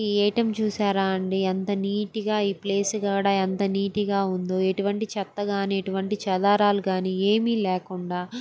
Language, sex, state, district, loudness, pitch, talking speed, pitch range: Telugu, female, Andhra Pradesh, Guntur, -25 LUFS, 200 Hz, 155 wpm, 190-205 Hz